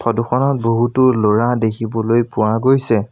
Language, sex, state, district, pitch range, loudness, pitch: Assamese, male, Assam, Sonitpur, 110-125 Hz, -16 LUFS, 115 Hz